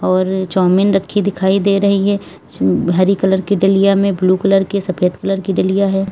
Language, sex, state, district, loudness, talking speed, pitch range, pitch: Hindi, female, Uttar Pradesh, Lalitpur, -15 LUFS, 195 wpm, 185-200 Hz, 195 Hz